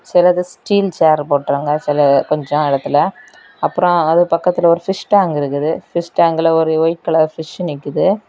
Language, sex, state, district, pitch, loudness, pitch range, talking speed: Tamil, female, Tamil Nadu, Kanyakumari, 165 Hz, -15 LUFS, 150-180 Hz, 165 wpm